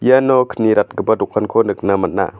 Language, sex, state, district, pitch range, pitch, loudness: Garo, male, Meghalaya, West Garo Hills, 95-125 Hz, 105 Hz, -16 LUFS